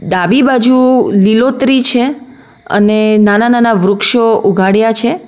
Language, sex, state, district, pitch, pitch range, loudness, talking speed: Gujarati, female, Gujarat, Valsad, 230 Hz, 205-255 Hz, -10 LUFS, 115 wpm